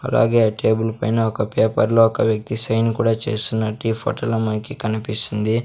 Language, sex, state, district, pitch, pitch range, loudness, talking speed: Telugu, male, Andhra Pradesh, Sri Satya Sai, 110 Hz, 110-115 Hz, -19 LUFS, 150 wpm